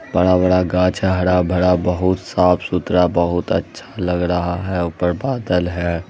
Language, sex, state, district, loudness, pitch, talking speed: Hindi, male, Bihar, Araria, -18 LUFS, 90 Hz, 150 wpm